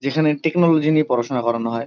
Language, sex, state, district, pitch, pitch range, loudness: Bengali, male, West Bengal, Kolkata, 145 Hz, 120-155 Hz, -18 LUFS